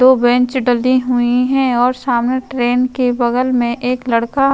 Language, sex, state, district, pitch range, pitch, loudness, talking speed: Hindi, female, Uttar Pradesh, Jalaun, 245-255 Hz, 250 Hz, -15 LUFS, 185 wpm